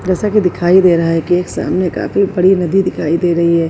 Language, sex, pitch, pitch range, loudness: Urdu, female, 180 Hz, 170-190 Hz, -13 LUFS